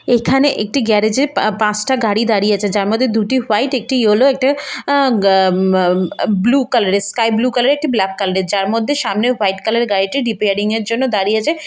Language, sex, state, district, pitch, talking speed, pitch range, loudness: Bengali, female, West Bengal, Malda, 225 Hz, 220 wpm, 200-260 Hz, -15 LUFS